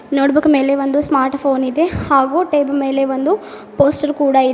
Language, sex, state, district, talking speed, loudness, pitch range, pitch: Kannada, female, Karnataka, Bidar, 170 wpm, -15 LUFS, 270-295 Hz, 280 Hz